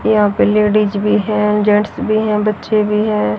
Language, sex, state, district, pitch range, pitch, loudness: Hindi, female, Haryana, Rohtak, 210-215 Hz, 210 Hz, -14 LUFS